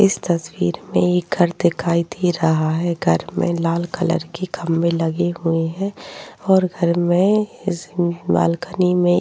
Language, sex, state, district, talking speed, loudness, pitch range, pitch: Hindi, female, Uttar Pradesh, Jyotiba Phule Nagar, 155 wpm, -19 LUFS, 170-180 Hz, 175 Hz